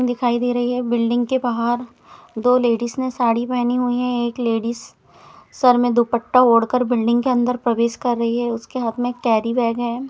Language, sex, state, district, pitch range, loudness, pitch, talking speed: Hindi, female, Chhattisgarh, Rajnandgaon, 235-245 Hz, -19 LUFS, 240 Hz, 200 wpm